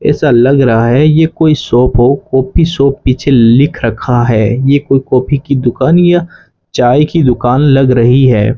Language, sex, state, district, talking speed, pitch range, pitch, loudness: Hindi, male, Rajasthan, Bikaner, 180 wpm, 120-145 Hz, 135 Hz, -9 LUFS